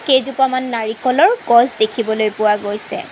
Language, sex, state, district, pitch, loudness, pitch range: Assamese, female, Assam, Kamrup Metropolitan, 235 Hz, -16 LUFS, 215-265 Hz